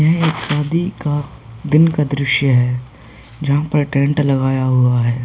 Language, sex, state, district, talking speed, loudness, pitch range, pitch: Hindi, male, Uttar Pradesh, Hamirpur, 160 wpm, -16 LUFS, 125-150 Hz, 140 Hz